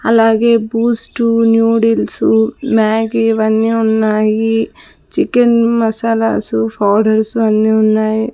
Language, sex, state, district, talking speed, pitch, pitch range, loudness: Telugu, female, Andhra Pradesh, Sri Satya Sai, 80 wpm, 225 Hz, 220-230 Hz, -13 LUFS